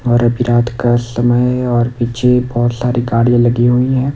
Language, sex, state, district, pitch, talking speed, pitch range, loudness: Hindi, male, Odisha, Nuapada, 120 Hz, 200 wpm, 120-125 Hz, -13 LUFS